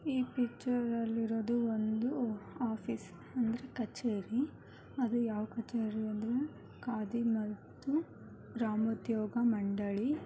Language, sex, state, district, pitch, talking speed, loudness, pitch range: Kannada, male, Karnataka, Gulbarga, 230 Hz, 100 wpm, -36 LUFS, 220-245 Hz